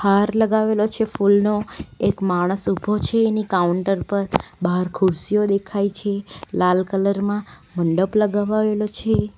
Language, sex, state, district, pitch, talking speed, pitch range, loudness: Gujarati, female, Gujarat, Valsad, 200 Hz, 135 wpm, 185-210 Hz, -20 LUFS